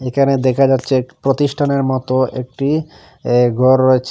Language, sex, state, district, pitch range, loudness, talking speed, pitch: Bengali, male, Assam, Hailakandi, 130-140 Hz, -15 LUFS, 130 wpm, 130 Hz